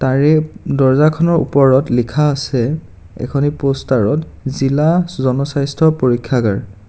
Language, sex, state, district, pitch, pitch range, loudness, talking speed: Assamese, male, Assam, Kamrup Metropolitan, 135 Hz, 130-150 Hz, -15 LUFS, 95 wpm